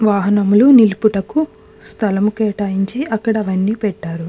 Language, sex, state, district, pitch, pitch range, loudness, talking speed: Telugu, female, Andhra Pradesh, Krishna, 210 Hz, 195-225 Hz, -15 LUFS, 100 wpm